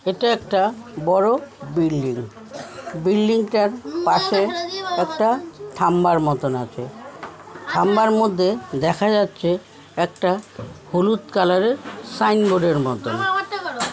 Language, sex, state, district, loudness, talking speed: Bengali, female, West Bengal, Malda, -20 LUFS, 95 wpm